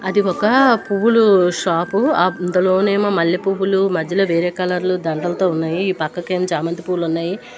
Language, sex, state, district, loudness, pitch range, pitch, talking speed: Telugu, female, Andhra Pradesh, Srikakulam, -17 LUFS, 175-195 Hz, 180 Hz, 140 wpm